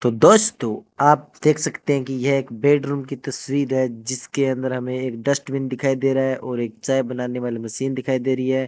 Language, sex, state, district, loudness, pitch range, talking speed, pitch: Hindi, male, Rajasthan, Bikaner, -21 LUFS, 125-140 Hz, 220 wpm, 130 Hz